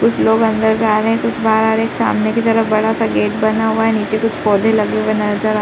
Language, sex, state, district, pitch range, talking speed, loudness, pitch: Hindi, female, Uttar Pradesh, Muzaffarnagar, 215-225 Hz, 290 wpm, -15 LUFS, 220 Hz